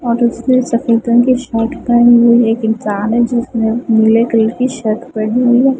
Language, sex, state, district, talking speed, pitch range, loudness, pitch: Hindi, female, Punjab, Fazilka, 195 wpm, 225-245 Hz, -12 LUFS, 235 Hz